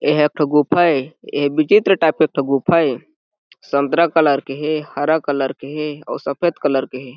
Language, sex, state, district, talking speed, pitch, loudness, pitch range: Chhattisgarhi, male, Chhattisgarh, Jashpur, 225 wpm, 150 Hz, -17 LUFS, 140-160 Hz